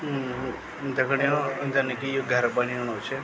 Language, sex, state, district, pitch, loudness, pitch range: Garhwali, male, Uttarakhand, Tehri Garhwal, 135 Hz, -26 LUFS, 125-140 Hz